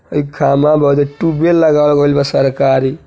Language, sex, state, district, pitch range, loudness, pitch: Bhojpuri, male, Uttar Pradesh, Deoria, 140-150 Hz, -12 LUFS, 145 Hz